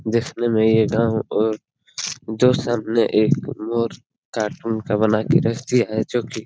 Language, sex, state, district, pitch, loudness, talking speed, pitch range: Hindi, male, Bihar, Darbhanga, 115 Hz, -20 LUFS, 140 wpm, 110-125 Hz